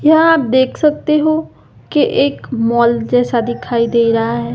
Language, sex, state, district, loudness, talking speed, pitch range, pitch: Hindi, female, Madhya Pradesh, Umaria, -14 LUFS, 170 wpm, 235-300 Hz, 245 Hz